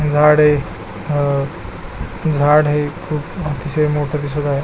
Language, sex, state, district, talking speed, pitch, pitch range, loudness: Marathi, male, Maharashtra, Pune, 115 wpm, 150 Hz, 145-150 Hz, -17 LUFS